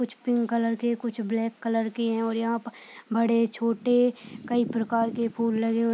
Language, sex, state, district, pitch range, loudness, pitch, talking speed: Hindi, female, Uttar Pradesh, Deoria, 225-235 Hz, -26 LUFS, 230 Hz, 190 wpm